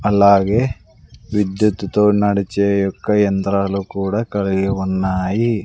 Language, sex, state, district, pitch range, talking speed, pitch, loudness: Telugu, male, Andhra Pradesh, Sri Satya Sai, 95-105 Hz, 95 wpm, 100 Hz, -17 LUFS